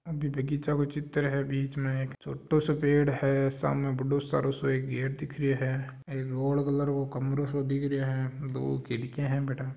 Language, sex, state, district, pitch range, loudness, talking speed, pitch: Marwari, male, Rajasthan, Nagaur, 135-145 Hz, -30 LUFS, 180 wpm, 135 Hz